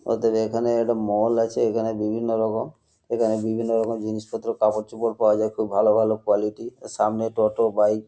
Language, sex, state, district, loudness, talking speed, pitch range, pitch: Bengali, male, West Bengal, North 24 Parganas, -23 LUFS, 185 wpm, 110-115 Hz, 110 Hz